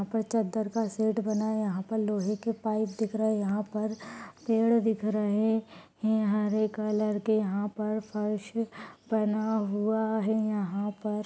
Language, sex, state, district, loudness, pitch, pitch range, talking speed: Hindi, female, Uttar Pradesh, Etah, -29 LUFS, 215 Hz, 210-220 Hz, 155 wpm